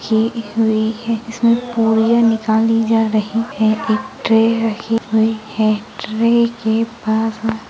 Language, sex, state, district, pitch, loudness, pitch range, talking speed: Hindi, female, Uttarakhand, Tehri Garhwal, 225 Hz, -17 LUFS, 220-230 Hz, 125 wpm